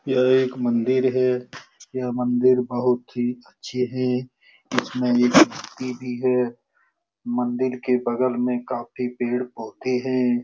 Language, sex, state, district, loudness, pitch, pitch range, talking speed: Hindi, male, Bihar, Lakhisarai, -22 LUFS, 125 Hz, 125-130 Hz, 125 wpm